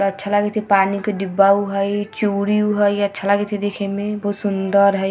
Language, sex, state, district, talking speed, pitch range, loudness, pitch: Hindi, female, Bihar, Vaishali, 245 wpm, 200-205 Hz, -18 LUFS, 200 Hz